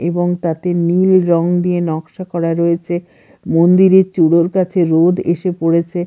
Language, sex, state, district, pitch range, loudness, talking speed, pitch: Bengali, female, Bihar, Katihar, 170-180 Hz, -14 LUFS, 140 wpm, 175 Hz